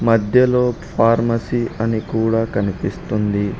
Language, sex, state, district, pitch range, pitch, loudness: Telugu, male, Telangana, Hyderabad, 105-115 Hz, 115 Hz, -18 LUFS